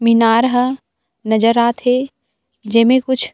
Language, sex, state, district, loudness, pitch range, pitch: Chhattisgarhi, female, Chhattisgarh, Rajnandgaon, -15 LUFS, 230-255 Hz, 235 Hz